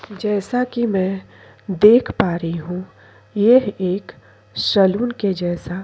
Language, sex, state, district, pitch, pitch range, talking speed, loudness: Hindi, female, Chhattisgarh, Korba, 190 Hz, 175-215 Hz, 125 wpm, -18 LUFS